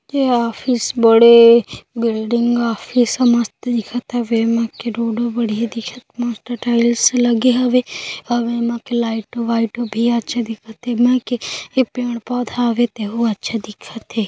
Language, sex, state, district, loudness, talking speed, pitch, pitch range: Hindi, female, Chhattisgarh, Korba, -17 LUFS, 145 wpm, 235 Hz, 230-245 Hz